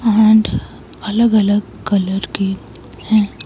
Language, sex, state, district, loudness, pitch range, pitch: Hindi, female, Himachal Pradesh, Shimla, -16 LUFS, 200-220 Hz, 210 Hz